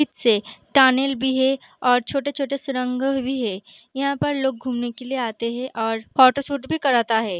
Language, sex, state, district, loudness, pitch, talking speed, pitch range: Hindi, female, Bihar, Saharsa, -21 LUFS, 260 Hz, 180 wpm, 235-275 Hz